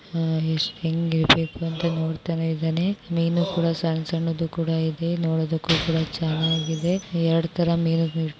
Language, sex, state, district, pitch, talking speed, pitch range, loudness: Kannada, female, Karnataka, Shimoga, 165 Hz, 145 wpm, 160-170 Hz, -24 LUFS